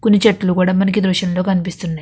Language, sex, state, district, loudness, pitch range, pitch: Telugu, female, Andhra Pradesh, Krishna, -16 LUFS, 180-200 Hz, 185 Hz